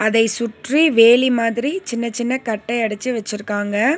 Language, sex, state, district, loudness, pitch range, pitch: Tamil, female, Tamil Nadu, Nilgiris, -18 LUFS, 220-250 Hz, 235 Hz